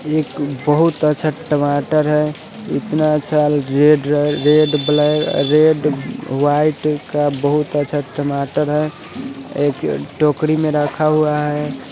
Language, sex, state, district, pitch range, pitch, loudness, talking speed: Hindi, male, Bihar, Sitamarhi, 145-155 Hz, 150 Hz, -17 LUFS, 125 wpm